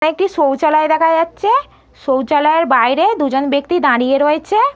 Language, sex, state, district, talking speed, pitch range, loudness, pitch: Bengali, female, West Bengal, North 24 Parganas, 125 wpm, 280-335 Hz, -14 LUFS, 305 Hz